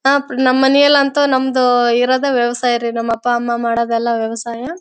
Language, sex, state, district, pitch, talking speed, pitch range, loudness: Kannada, female, Karnataka, Bellary, 245 Hz, 150 wpm, 235-265 Hz, -15 LUFS